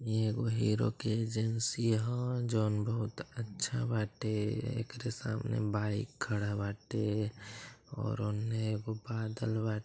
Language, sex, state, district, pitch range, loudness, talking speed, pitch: Bhojpuri, male, Uttar Pradesh, Deoria, 105-115 Hz, -35 LUFS, 120 wpm, 110 Hz